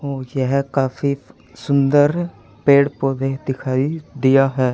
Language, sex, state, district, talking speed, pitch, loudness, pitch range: Hindi, male, Haryana, Charkhi Dadri, 115 wpm, 135 Hz, -18 LUFS, 130-140 Hz